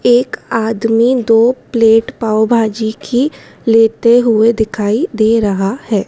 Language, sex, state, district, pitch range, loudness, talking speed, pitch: Hindi, female, Madhya Pradesh, Dhar, 220-235 Hz, -13 LUFS, 130 wpm, 225 Hz